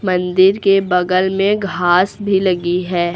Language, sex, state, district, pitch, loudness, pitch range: Hindi, female, Uttar Pradesh, Lucknow, 185 Hz, -15 LUFS, 180-195 Hz